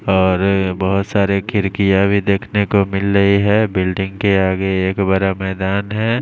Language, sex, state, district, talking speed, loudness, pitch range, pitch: Hindi, male, Maharashtra, Mumbai Suburban, 165 wpm, -16 LUFS, 95-100 Hz, 100 Hz